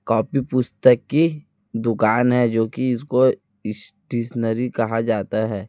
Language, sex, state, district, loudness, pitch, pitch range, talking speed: Hindi, male, Chhattisgarh, Raipur, -20 LUFS, 115 Hz, 110-125 Hz, 115 wpm